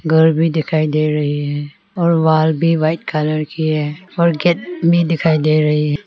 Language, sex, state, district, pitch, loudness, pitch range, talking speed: Hindi, female, Arunachal Pradesh, Longding, 160 Hz, -16 LUFS, 155-165 Hz, 190 wpm